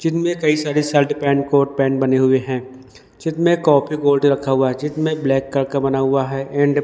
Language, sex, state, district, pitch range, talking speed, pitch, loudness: Hindi, male, Madhya Pradesh, Dhar, 135-150 Hz, 220 wpm, 140 Hz, -18 LUFS